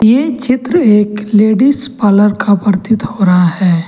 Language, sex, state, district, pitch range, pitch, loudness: Hindi, male, Jharkhand, Ranchi, 200-250 Hz, 210 Hz, -11 LUFS